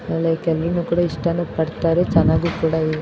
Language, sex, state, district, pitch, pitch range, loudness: Kannada, female, Karnataka, Bellary, 165 Hz, 160-170 Hz, -20 LUFS